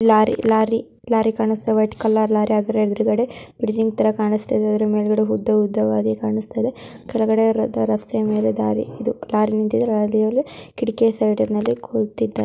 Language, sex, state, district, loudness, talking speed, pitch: Kannada, female, Karnataka, Mysore, -20 LUFS, 155 wpm, 215 Hz